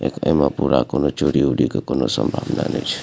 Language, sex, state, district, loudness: Maithili, male, Bihar, Supaul, -19 LUFS